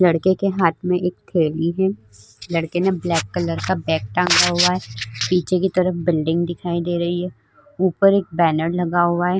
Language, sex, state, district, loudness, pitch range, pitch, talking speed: Hindi, female, Uttar Pradesh, Budaun, -19 LUFS, 165-180 Hz, 175 Hz, 190 wpm